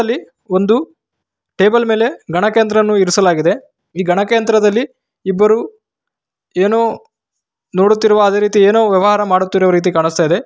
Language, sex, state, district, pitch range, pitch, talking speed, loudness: Kannada, male, Karnataka, Raichur, 190-225 Hz, 210 Hz, 110 wpm, -13 LUFS